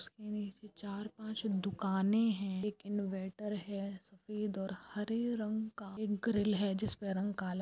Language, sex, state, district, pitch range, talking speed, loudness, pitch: Hindi, female, Andhra Pradesh, Anantapur, 195-215 Hz, 235 wpm, -38 LUFS, 205 Hz